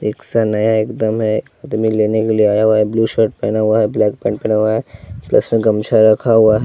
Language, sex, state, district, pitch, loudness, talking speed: Hindi, male, Bihar, West Champaran, 110 Hz, -15 LUFS, 225 wpm